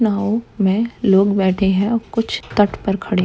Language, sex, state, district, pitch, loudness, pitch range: Hindi, female, Bihar, Gaya, 200 Hz, -18 LUFS, 195-225 Hz